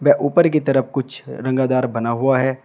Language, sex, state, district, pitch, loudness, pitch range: Hindi, male, Uttar Pradesh, Shamli, 135 Hz, -18 LUFS, 130-145 Hz